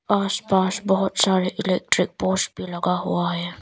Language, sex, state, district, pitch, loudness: Hindi, female, Arunachal Pradesh, Lower Dibang Valley, 190 Hz, -22 LUFS